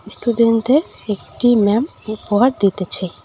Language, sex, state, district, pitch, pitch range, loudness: Bengali, female, West Bengal, Cooch Behar, 225 Hz, 205-245 Hz, -16 LUFS